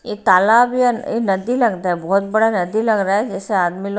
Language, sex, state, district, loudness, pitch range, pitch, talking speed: Hindi, female, Bihar, Patna, -17 LUFS, 195-230 Hz, 210 Hz, 240 wpm